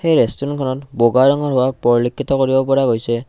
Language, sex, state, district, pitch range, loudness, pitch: Assamese, male, Assam, Kamrup Metropolitan, 120-140 Hz, -16 LUFS, 130 Hz